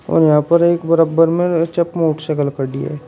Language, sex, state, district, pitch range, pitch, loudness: Hindi, male, Uttar Pradesh, Shamli, 150-170 Hz, 165 Hz, -15 LUFS